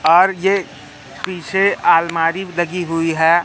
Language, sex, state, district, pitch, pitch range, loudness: Hindi, male, Madhya Pradesh, Katni, 170 Hz, 165-190 Hz, -16 LUFS